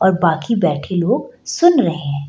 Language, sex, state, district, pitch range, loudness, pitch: Hindi, female, Bihar, Gaya, 155-210 Hz, -17 LUFS, 180 Hz